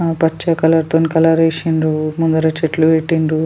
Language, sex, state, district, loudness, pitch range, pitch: Telugu, female, Telangana, Nalgonda, -15 LUFS, 160-165 Hz, 160 Hz